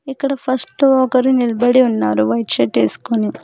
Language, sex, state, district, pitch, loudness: Telugu, female, Telangana, Hyderabad, 245 Hz, -15 LUFS